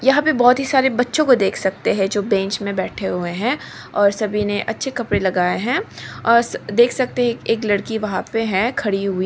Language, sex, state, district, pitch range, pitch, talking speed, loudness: Hindi, female, Nagaland, Dimapur, 200-245 Hz, 220 Hz, 220 wpm, -19 LUFS